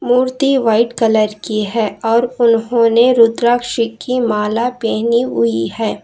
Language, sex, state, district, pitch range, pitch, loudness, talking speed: Hindi, female, Karnataka, Bangalore, 220-245 Hz, 230 Hz, -15 LUFS, 130 wpm